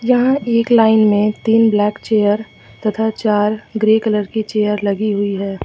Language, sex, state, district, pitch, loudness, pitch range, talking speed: Hindi, female, Jharkhand, Ranchi, 215 Hz, -15 LUFS, 210-220 Hz, 170 wpm